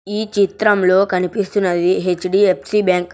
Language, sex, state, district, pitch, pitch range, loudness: Telugu, male, Telangana, Hyderabad, 190 Hz, 185-205 Hz, -16 LUFS